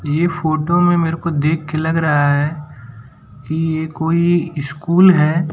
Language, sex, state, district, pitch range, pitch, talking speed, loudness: Hindi, male, Gujarat, Valsad, 145-165 Hz, 160 Hz, 150 wpm, -16 LUFS